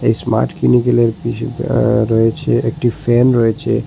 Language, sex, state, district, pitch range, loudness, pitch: Bengali, male, Assam, Hailakandi, 115-125 Hz, -15 LUFS, 120 Hz